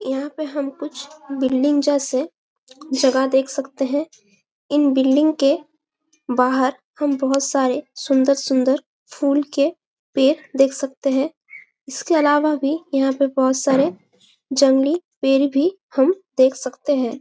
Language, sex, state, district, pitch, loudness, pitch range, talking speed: Hindi, female, Chhattisgarh, Bastar, 275 Hz, -19 LUFS, 270-295 Hz, 135 wpm